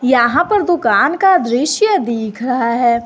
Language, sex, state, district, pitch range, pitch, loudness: Hindi, female, Jharkhand, Garhwa, 240-365 Hz, 255 Hz, -14 LUFS